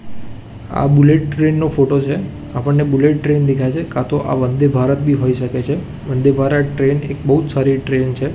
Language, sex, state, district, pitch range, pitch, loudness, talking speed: Gujarati, male, Gujarat, Gandhinagar, 130-145 Hz, 140 Hz, -16 LUFS, 200 wpm